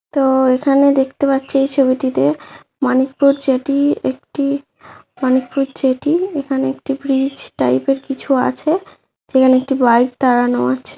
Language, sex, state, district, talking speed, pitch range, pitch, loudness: Bengali, female, West Bengal, Kolkata, 120 wpm, 255-280 Hz, 270 Hz, -16 LUFS